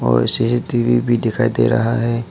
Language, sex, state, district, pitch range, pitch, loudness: Hindi, male, Arunachal Pradesh, Papum Pare, 115-120 Hz, 115 Hz, -17 LUFS